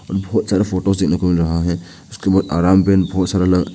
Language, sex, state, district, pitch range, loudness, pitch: Hindi, male, Arunachal Pradesh, Papum Pare, 90-95 Hz, -17 LUFS, 95 Hz